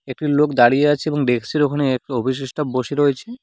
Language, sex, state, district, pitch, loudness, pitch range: Bengali, male, West Bengal, Cooch Behar, 140 Hz, -19 LUFS, 130-150 Hz